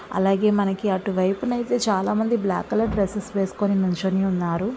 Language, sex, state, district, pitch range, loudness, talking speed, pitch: Telugu, female, Andhra Pradesh, Visakhapatnam, 190-210 Hz, -23 LUFS, 165 wpm, 200 Hz